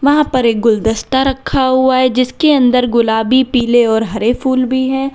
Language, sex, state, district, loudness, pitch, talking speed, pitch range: Hindi, female, Uttar Pradesh, Lalitpur, -13 LUFS, 255 Hz, 185 wpm, 235-265 Hz